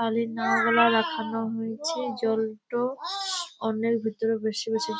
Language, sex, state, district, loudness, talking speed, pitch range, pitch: Bengali, female, West Bengal, Malda, -26 LUFS, 130 wpm, 220-235 Hz, 225 Hz